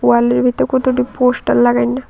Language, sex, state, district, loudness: Bengali, female, Tripura, West Tripura, -14 LUFS